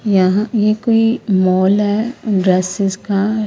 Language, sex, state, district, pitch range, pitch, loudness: Hindi, female, Haryana, Rohtak, 190-215 Hz, 205 Hz, -15 LUFS